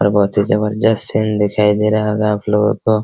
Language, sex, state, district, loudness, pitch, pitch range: Hindi, male, Bihar, Araria, -15 LUFS, 105 Hz, 105-110 Hz